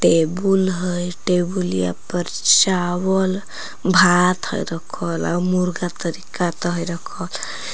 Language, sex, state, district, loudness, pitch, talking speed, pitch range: Magahi, female, Jharkhand, Palamu, -20 LUFS, 180 Hz, 125 wpm, 175-185 Hz